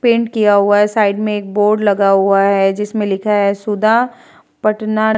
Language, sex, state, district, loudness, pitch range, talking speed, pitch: Hindi, female, Bihar, Vaishali, -14 LUFS, 200-215 Hz, 195 wpm, 210 Hz